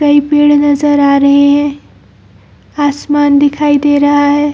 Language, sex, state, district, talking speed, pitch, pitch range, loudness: Hindi, female, Bihar, Jamui, 145 wpm, 290 Hz, 285-290 Hz, -9 LUFS